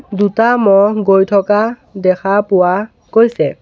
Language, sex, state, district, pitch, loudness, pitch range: Assamese, male, Assam, Sonitpur, 205 Hz, -13 LUFS, 195-220 Hz